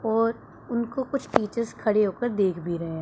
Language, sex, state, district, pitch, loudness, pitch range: Hindi, female, Punjab, Pathankot, 225 Hz, -26 LUFS, 195-235 Hz